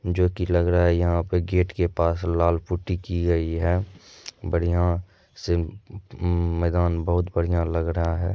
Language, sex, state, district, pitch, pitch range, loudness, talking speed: Maithili, male, Bihar, Madhepura, 85 Hz, 85-90 Hz, -24 LUFS, 160 wpm